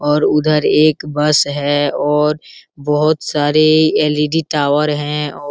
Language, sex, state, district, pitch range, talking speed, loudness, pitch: Hindi, male, Bihar, Araria, 145-150 Hz, 140 wpm, -14 LUFS, 150 Hz